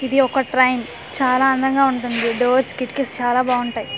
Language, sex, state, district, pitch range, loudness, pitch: Telugu, female, Andhra Pradesh, Manyam, 245-265 Hz, -18 LUFS, 255 Hz